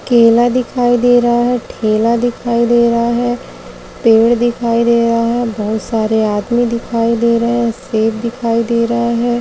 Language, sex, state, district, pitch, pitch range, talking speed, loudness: Hindi, female, Uttar Pradesh, Varanasi, 235 Hz, 230-240 Hz, 170 wpm, -14 LUFS